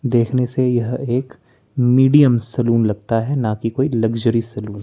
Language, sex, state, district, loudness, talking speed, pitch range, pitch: Hindi, male, Chandigarh, Chandigarh, -17 LUFS, 175 wpm, 115-130 Hz, 120 Hz